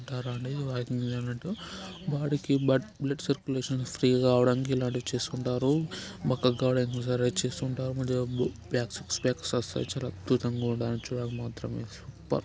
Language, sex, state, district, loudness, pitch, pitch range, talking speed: Telugu, male, Andhra Pradesh, Chittoor, -30 LUFS, 125 Hz, 125-130 Hz, 95 wpm